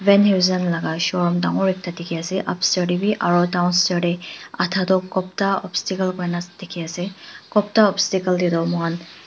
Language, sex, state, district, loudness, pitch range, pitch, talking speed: Nagamese, female, Nagaland, Dimapur, -20 LUFS, 175-190 Hz, 180 Hz, 175 wpm